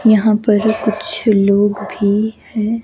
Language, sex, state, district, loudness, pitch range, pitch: Hindi, female, Himachal Pradesh, Shimla, -15 LUFS, 205-220 Hz, 215 Hz